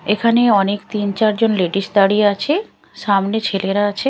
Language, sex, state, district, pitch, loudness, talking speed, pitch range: Bengali, female, Chhattisgarh, Raipur, 205 Hz, -16 LUFS, 160 wpm, 195-220 Hz